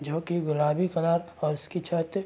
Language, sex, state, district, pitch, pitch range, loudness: Hindi, male, Chhattisgarh, Raigarh, 165 Hz, 155-175 Hz, -28 LUFS